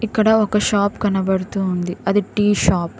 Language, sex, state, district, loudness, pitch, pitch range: Telugu, female, Telangana, Mahabubabad, -18 LUFS, 200 Hz, 185-210 Hz